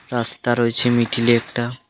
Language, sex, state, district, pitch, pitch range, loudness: Bengali, male, West Bengal, Alipurduar, 120 Hz, 115-120 Hz, -17 LUFS